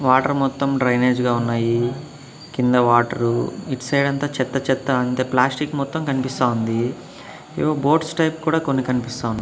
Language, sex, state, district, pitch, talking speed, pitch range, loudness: Telugu, male, Andhra Pradesh, Annamaya, 130 Hz, 140 wpm, 125-140 Hz, -20 LUFS